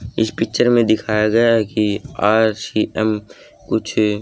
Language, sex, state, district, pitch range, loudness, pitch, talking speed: Hindi, male, Haryana, Charkhi Dadri, 105-115 Hz, -17 LUFS, 110 Hz, 130 wpm